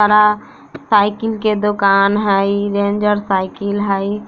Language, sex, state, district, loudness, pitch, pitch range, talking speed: Bajjika, female, Bihar, Vaishali, -15 LUFS, 205 Hz, 200-210 Hz, 110 wpm